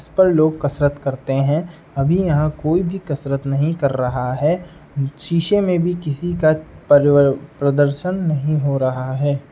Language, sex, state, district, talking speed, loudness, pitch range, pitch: Hindi, male, Uttar Pradesh, Etah, 165 wpm, -18 LUFS, 140-165 Hz, 145 Hz